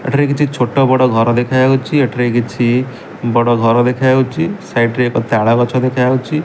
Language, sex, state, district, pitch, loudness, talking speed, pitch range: Odia, male, Odisha, Malkangiri, 125 Hz, -14 LUFS, 160 wpm, 120-130 Hz